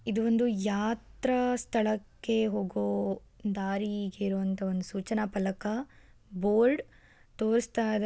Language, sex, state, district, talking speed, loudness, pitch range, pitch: Kannada, female, Karnataka, Shimoga, 90 wpm, -30 LUFS, 195-230 Hz, 210 Hz